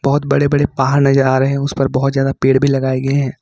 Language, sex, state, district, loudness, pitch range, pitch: Hindi, male, Jharkhand, Ranchi, -15 LUFS, 135-140 Hz, 135 Hz